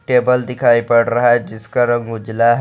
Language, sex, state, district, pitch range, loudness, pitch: Hindi, male, Jharkhand, Garhwa, 115-125 Hz, -15 LUFS, 120 Hz